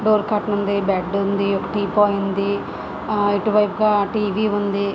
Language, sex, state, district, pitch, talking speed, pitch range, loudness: Telugu, female, Andhra Pradesh, Visakhapatnam, 205 Hz, 155 wpm, 200-210 Hz, -20 LUFS